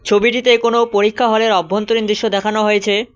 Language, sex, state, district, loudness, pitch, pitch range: Bengali, male, West Bengal, Cooch Behar, -15 LUFS, 215 Hz, 210-235 Hz